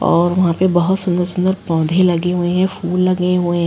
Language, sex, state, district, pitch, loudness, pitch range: Hindi, female, Uttar Pradesh, Jalaun, 180 Hz, -16 LUFS, 175-185 Hz